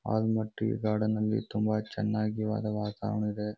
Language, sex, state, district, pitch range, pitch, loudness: Kannada, male, Karnataka, Bijapur, 105-110 Hz, 110 Hz, -31 LUFS